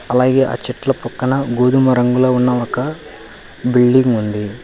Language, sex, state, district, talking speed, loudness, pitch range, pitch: Telugu, male, Telangana, Hyderabad, 130 wpm, -15 LUFS, 120-130 Hz, 125 Hz